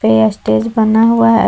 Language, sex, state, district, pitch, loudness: Hindi, female, Jharkhand, Palamu, 220 Hz, -12 LUFS